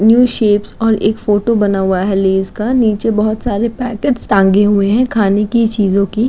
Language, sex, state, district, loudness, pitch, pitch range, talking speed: Hindi, female, Uttar Pradesh, Gorakhpur, -13 LUFS, 215 Hz, 200-230 Hz, 200 wpm